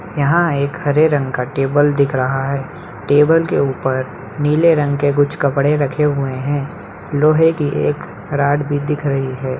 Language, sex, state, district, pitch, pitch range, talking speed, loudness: Hindi, female, Bihar, Darbhanga, 145 Hz, 135-150 Hz, 175 wpm, -16 LUFS